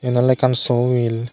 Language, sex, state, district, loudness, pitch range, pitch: Chakma, male, Tripura, Dhalai, -18 LUFS, 120-125 Hz, 125 Hz